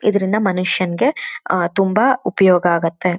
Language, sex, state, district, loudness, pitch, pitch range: Kannada, female, Karnataka, Shimoga, -17 LUFS, 190 Hz, 180-210 Hz